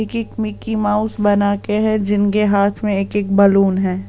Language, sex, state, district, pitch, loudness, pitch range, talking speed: Hindi, female, Punjab, Pathankot, 205 Hz, -17 LUFS, 200-215 Hz, 175 wpm